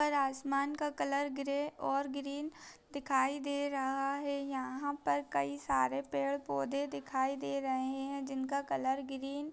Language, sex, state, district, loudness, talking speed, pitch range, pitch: Hindi, female, Chhattisgarh, Kabirdham, -36 LUFS, 150 wpm, 260-280 Hz, 275 Hz